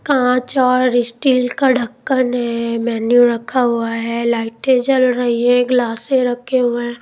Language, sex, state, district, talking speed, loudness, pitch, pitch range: Hindi, female, Chandigarh, Chandigarh, 155 wpm, -16 LUFS, 245 Hz, 235-255 Hz